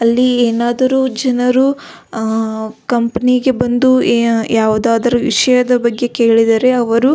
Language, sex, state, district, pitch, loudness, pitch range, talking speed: Kannada, female, Karnataka, Belgaum, 240 Hz, -13 LUFS, 230-255 Hz, 90 wpm